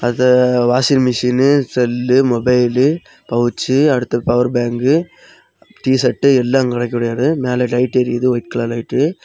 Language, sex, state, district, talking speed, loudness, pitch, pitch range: Tamil, male, Tamil Nadu, Kanyakumari, 125 wpm, -15 LUFS, 125 Hz, 120-130 Hz